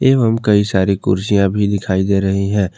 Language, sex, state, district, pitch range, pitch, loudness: Hindi, male, Jharkhand, Palamu, 95-105 Hz, 100 Hz, -15 LUFS